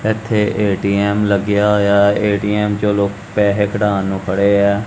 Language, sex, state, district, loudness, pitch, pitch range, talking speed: Punjabi, male, Punjab, Kapurthala, -15 LUFS, 100 Hz, 100-105 Hz, 150 wpm